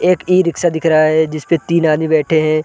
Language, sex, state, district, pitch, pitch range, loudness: Hindi, male, Bihar, Sitamarhi, 160 Hz, 155-170 Hz, -14 LUFS